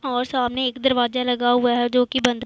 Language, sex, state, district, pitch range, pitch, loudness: Hindi, female, Punjab, Pathankot, 245-255 Hz, 245 Hz, -20 LUFS